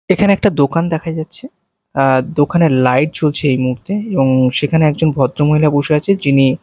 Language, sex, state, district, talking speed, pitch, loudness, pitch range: Bengali, male, Bihar, Katihar, 165 wpm, 150 Hz, -14 LUFS, 135-165 Hz